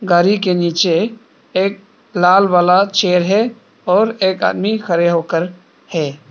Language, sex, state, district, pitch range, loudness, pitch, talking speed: Hindi, male, Arunachal Pradesh, Papum Pare, 175-205 Hz, -15 LUFS, 185 Hz, 135 wpm